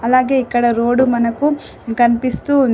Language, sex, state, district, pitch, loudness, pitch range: Telugu, female, Telangana, Adilabad, 245 Hz, -16 LUFS, 240-260 Hz